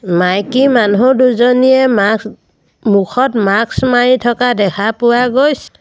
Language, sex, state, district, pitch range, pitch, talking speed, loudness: Assamese, female, Assam, Sonitpur, 205-255 Hz, 240 Hz, 115 wpm, -12 LUFS